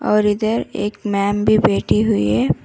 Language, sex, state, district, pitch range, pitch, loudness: Hindi, female, Karnataka, Koppal, 205-215 Hz, 210 Hz, -17 LUFS